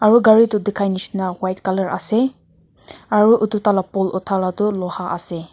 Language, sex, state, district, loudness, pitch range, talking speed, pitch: Nagamese, female, Nagaland, Kohima, -18 LUFS, 185-210 Hz, 165 wpm, 195 Hz